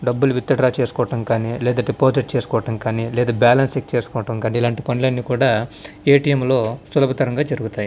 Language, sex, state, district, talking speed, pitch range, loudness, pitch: Telugu, male, Andhra Pradesh, Visakhapatnam, 150 wpm, 115-130 Hz, -19 LUFS, 125 Hz